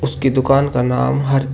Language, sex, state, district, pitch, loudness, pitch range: Hindi, male, Uttar Pradesh, Shamli, 135 Hz, -16 LUFS, 130-140 Hz